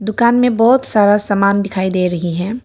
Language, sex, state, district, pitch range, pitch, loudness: Hindi, female, Arunachal Pradesh, Papum Pare, 190-235 Hz, 205 Hz, -14 LUFS